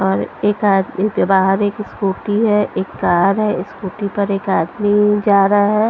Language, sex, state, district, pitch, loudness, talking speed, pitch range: Hindi, female, Punjab, Pathankot, 205 Hz, -16 LUFS, 185 wpm, 195-210 Hz